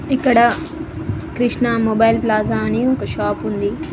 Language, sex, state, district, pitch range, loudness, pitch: Telugu, female, Telangana, Mahabubabad, 220-245 Hz, -18 LUFS, 235 Hz